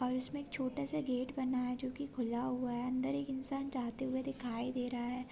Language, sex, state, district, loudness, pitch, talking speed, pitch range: Hindi, female, Maharashtra, Aurangabad, -34 LUFS, 255 Hz, 235 wpm, 250-270 Hz